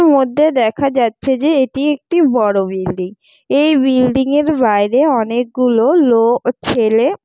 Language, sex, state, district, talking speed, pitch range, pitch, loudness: Bengali, female, West Bengal, Jalpaiguri, 130 wpm, 230-285 Hz, 255 Hz, -14 LUFS